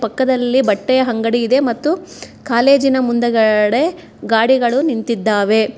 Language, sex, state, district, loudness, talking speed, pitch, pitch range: Kannada, female, Karnataka, Bangalore, -15 LUFS, 95 wpm, 245 Hz, 225-265 Hz